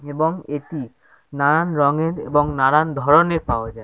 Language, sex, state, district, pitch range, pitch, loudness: Bengali, male, West Bengal, Jhargram, 140-155 Hz, 145 Hz, -19 LUFS